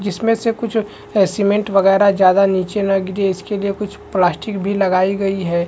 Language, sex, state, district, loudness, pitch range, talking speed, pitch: Hindi, male, Chhattisgarh, Rajnandgaon, -17 LUFS, 190-205 Hz, 180 wpm, 195 Hz